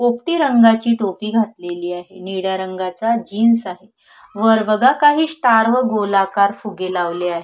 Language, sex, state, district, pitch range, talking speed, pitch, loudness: Marathi, female, Maharashtra, Solapur, 185-230 Hz, 145 wpm, 215 Hz, -17 LUFS